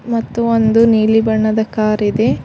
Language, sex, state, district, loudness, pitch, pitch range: Kannada, female, Karnataka, Koppal, -14 LUFS, 220 Hz, 215-230 Hz